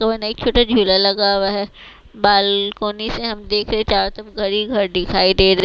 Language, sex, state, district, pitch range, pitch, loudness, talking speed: Hindi, female, Bihar, West Champaran, 195-215 Hz, 205 Hz, -17 LUFS, 215 wpm